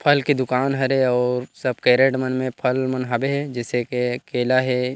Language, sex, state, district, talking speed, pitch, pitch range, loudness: Chhattisgarhi, male, Chhattisgarh, Rajnandgaon, 195 wpm, 130 Hz, 125-130 Hz, -21 LUFS